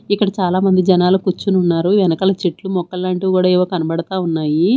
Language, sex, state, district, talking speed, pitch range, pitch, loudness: Telugu, female, Andhra Pradesh, Manyam, 165 wpm, 180-190 Hz, 185 Hz, -16 LUFS